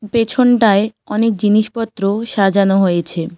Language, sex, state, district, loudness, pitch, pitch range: Bengali, female, West Bengal, Cooch Behar, -15 LUFS, 210 Hz, 195-225 Hz